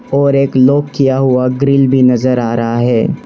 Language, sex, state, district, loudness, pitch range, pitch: Hindi, male, Arunachal Pradesh, Lower Dibang Valley, -11 LUFS, 125-140 Hz, 130 Hz